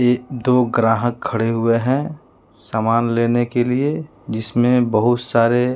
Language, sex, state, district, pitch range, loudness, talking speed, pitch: Hindi, male, Bihar, West Champaran, 115-125 Hz, -18 LUFS, 135 wpm, 120 Hz